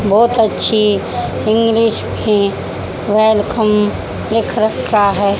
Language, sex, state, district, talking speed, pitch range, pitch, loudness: Hindi, female, Haryana, Charkhi Dadri, 90 wpm, 205-225 Hz, 215 Hz, -14 LUFS